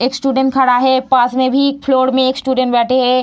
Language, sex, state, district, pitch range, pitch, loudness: Hindi, female, Bihar, Samastipur, 255-265 Hz, 260 Hz, -13 LUFS